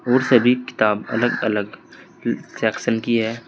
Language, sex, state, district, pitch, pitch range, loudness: Hindi, male, Uttar Pradesh, Saharanpur, 115 Hz, 110-125 Hz, -20 LUFS